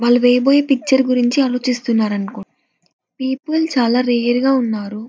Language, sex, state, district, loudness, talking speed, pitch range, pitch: Telugu, female, Andhra Pradesh, Anantapur, -16 LUFS, 120 wpm, 235-265 Hz, 245 Hz